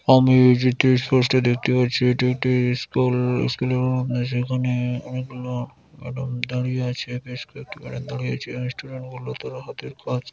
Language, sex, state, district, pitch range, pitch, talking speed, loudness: Bengali, male, West Bengal, Malda, 125-130 Hz, 125 Hz, 165 wpm, -22 LUFS